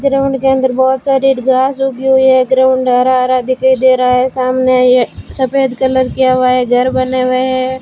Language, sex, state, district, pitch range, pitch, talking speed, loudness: Hindi, female, Rajasthan, Bikaner, 255-265 Hz, 260 Hz, 205 wpm, -12 LUFS